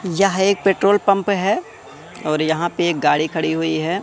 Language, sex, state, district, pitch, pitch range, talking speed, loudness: Hindi, male, Madhya Pradesh, Katni, 175 Hz, 160-195 Hz, 195 wpm, -18 LUFS